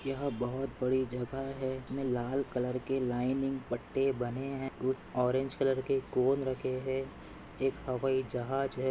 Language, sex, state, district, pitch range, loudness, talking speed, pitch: Hindi, male, Maharashtra, Pune, 125-135 Hz, -34 LUFS, 155 wpm, 130 Hz